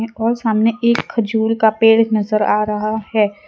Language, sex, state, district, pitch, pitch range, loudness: Hindi, female, Gujarat, Valsad, 220 Hz, 215-225 Hz, -16 LUFS